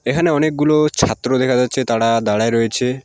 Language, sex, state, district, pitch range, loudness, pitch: Bengali, male, West Bengal, Alipurduar, 115-150 Hz, -16 LUFS, 125 Hz